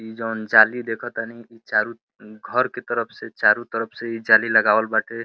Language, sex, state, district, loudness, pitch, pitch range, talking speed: Bhojpuri, male, Uttar Pradesh, Deoria, -20 LUFS, 115 Hz, 110-115 Hz, 195 wpm